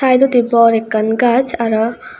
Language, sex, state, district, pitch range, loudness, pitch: Chakma, female, Tripura, West Tripura, 220-250 Hz, -14 LUFS, 235 Hz